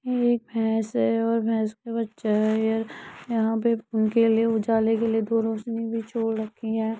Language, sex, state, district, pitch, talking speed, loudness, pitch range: Hindi, female, Uttar Pradesh, Muzaffarnagar, 225 Hz, 190 wpm, -25 LUFS, 220-230 Hz